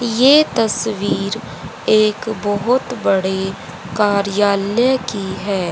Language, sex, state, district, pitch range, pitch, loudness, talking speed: Hindi, female, Haryana, Rohtak, 200-240 Hz, 210 Hz, -17 LUFS, 85 wpm